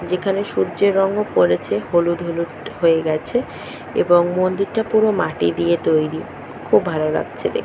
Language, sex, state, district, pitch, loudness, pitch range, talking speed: Bengali, female, West Bengal, Purulia, 175 Hz, -19 LUFS, 155-200 Hz, 140 wpm